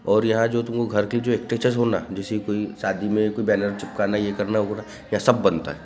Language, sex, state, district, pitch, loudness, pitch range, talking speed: Hindi, male, Maharashtra, Gondia, 105 Hz, -23 LUFS, 105-115 Hz, 225 wpm